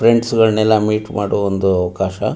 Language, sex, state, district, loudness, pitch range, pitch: Kannada, male, Karnataka, Mysore, -16 LUFS, 95-110 Hz, 105 Hz